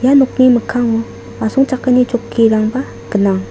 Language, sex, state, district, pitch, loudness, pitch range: Garo, female, Meghalaya, South Garo Hills, 240 Hz, -14 LUFS, 225-255 Hz